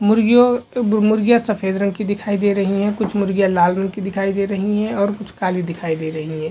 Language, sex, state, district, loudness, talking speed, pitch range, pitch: Hindi, male, Chhattisgarh, Bilaspur, -18 LUFS, 250 wpm, 190-215 Hz, 200 Hz